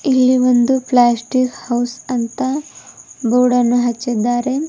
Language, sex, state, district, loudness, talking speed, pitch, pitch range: Kannada, female, Karnataka, Bidar, -16 LUFS, 90 wpm, 250 Hz, 240-255 Hz